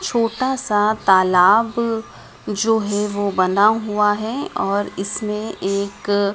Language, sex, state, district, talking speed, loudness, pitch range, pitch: Hindi, female, Madhya Pradesh, Dhar, 115 wpm, -19 LUFS, 200-225 Hz, 210 Hz